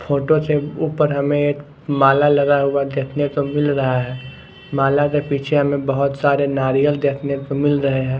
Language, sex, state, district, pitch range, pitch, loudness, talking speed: Hindi, male, Odisha, Khordha, 140-145 Hz, 140 Hz, -18 LUFS, 185 wpm